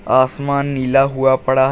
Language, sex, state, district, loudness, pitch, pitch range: Hindi, male, Uttar Pradesh, Shamli, -16 LUFS, 135 Hz, 130-135 Hz